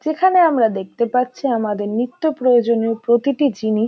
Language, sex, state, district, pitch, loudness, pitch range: Bengali, female, West Bengal, North 24 Parganas, 240 Hz, -17 LUFS, 225-280 Hz